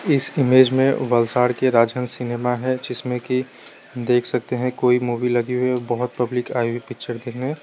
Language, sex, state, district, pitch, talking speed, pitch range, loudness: Hindi, male, Gujarat, Valsad, 125 Hz, 190 wpm, 120-130 Hz, -20 LUFS